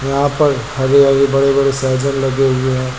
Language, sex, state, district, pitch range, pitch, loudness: Hindi, male, Uttar Pradesh, Lucknow, 130-140 Hz, 135 Hz, -14 LUFS